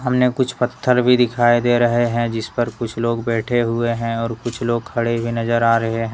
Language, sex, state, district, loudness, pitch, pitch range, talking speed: Hindi, male, Jharkhand, Deoghar, -19 LUFS, 120 Hz, 115-120 Hz, 235 wpm